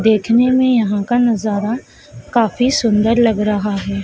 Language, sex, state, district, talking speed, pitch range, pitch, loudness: Hindi, female, Madhya Pradesh, Dhar, 150 wpm, 210-240 Hz, 225 Hz, -15 LUFS